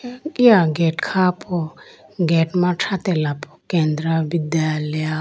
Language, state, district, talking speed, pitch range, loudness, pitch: Idu Mishmi, Arunachal Pradesh, Lower Dibang Valley, 105 wpm, 155-185 Hz, -19 LUFS, 170 Hz